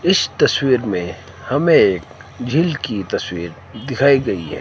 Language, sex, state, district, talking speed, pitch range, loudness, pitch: Hindi, male, Himachal Pradesh, Shimla, 145 wpm, 95-140 Hz, -17 LUFS, 120 Hz